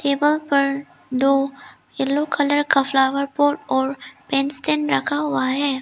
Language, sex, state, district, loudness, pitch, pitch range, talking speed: Hindi, female, Arunachal Pradesh, Lower Dibang Valley, -20 LUFS, 280 Hz, 275-290 Hz, 145 wpm